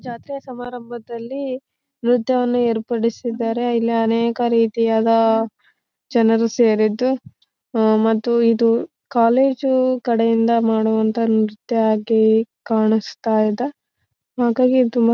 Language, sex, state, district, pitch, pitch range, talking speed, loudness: Kannada, female, Karnataka, Raichur, 230 Hz, 225-245 Hz, 30 wpm, -18 LUFS